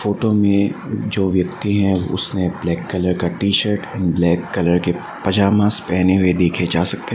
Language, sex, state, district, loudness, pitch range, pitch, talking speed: Hindi, male, Assam, Sonitpur, -18 LUFS, 90-100 Hz, 95 Hz, 185 wpm